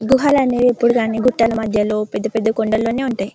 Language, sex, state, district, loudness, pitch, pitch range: Telugu, female, Telangana, Karimnagar, -17 LUFS, 230 Hz, 220-245 Hz